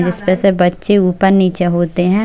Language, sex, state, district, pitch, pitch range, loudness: Hindi, female, Chhattisgarh, Bilaspur, 180 Hz, 180-195 Hz, -13 LUFS